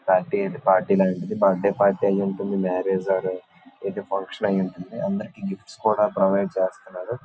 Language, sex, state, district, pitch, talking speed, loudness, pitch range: Telugu, male, Andhra Pradesh, Visakhapatnam, 100 Hz, 150 wpm, -23 LUFS, 95-105 Hz